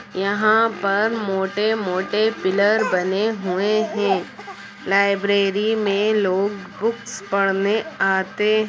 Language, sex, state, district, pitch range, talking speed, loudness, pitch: Hindi, female, Bihar, Darbhanga, 195-215 Hz, 95 wpm, -20 LUFS, 200 Hz